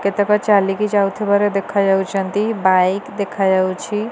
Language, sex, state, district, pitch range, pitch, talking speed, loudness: Odia, female, Odisha, Nuapada, 195-210 Hz, 200 Hz, 100 wpm, -17 LUFS